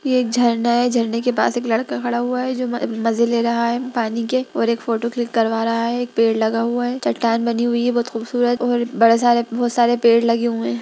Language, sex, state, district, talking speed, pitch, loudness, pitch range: Hindi, female, Bihar, Gaya, 245 wpm, 235 Hz, -19 LUFS, 230-245 Hz